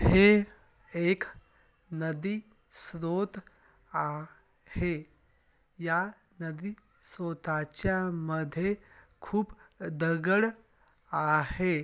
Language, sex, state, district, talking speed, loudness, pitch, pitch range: Marathi, male, Maharashtra, Sindhudurg, 60 wpm, -31 LUFS, 180 Hz, 160-205 Hz